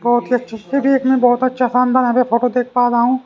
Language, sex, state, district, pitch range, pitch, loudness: Hindi, male, Haryana, Jhajjar, 240-255 Hz, 250 Hz, -15 LUFS